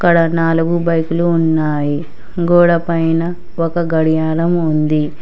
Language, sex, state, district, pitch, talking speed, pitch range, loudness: Telugu, female, Telangana, Hyderabad, 165 Hz, 90 wpm, 160-170 Hz, -15 LUFS